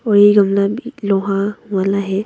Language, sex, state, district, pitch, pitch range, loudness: Hindi, female, Arunachal Pradesh, Longding, 200 Hz, 195-205 Hz, -16 LUFS